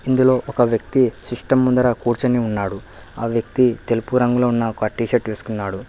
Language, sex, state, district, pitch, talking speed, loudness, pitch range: Telugu, male, Telangana, Hyderabad, 120 Hz, 155 wpm, -19 LUFS, 110-125 Hz